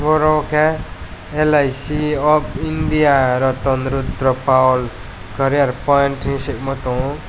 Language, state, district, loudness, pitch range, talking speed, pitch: Kokborok, Tripura, West Tripura, -17 LUFS, 130-150 Hz, 105 wpm, 140 Hz